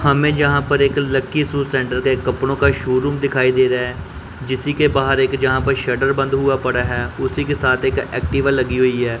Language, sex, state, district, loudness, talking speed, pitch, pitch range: Hindi, male, Punjab, Pathankot, -17 LUFS, 230 wpm, 135 Hz, 130-140 Hz